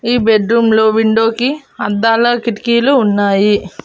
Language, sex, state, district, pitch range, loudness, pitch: Telugu, female, Andhra Pradesh, Annamaya, 210-235 Hz, -12 LUFS, 225 Hz